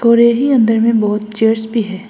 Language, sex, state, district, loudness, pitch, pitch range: Hindi, female, Assam, Hailakandi, -13 LUFS, 225 Hz, 215-235 Hz